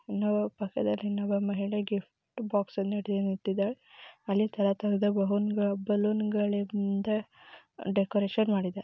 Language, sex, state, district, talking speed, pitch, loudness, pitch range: Kannada, female, Karnataka, Mysore, 70 wpm, 205 Hz, -30 LUFS, 200-210 Hz